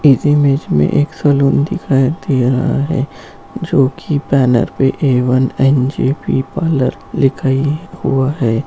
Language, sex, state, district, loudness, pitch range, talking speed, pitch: Hindi, male, West Bengal, Purulia, -14 LUFS, 130-150 Hz, 140 wpm, 135 Hz